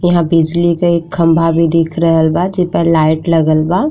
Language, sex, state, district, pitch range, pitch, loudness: Bhojpuri, female, Uttar Pradesh, Ghazipur, 165-175 Hz, 165 Hz, -12 LUFS